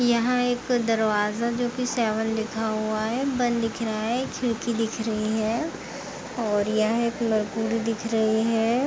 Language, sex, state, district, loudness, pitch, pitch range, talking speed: Hindi, female, Uttar Pradesh, Hamirpur, -25 LUFS, 225 Hz, 220-240 Hz, 155 wpm